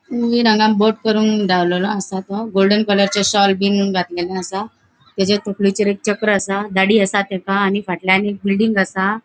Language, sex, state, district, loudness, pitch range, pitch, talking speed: Konkani, female, Goa, North and South Goa, -16 LUFS, 195-210 Hz, 200 Hz, 170 wpm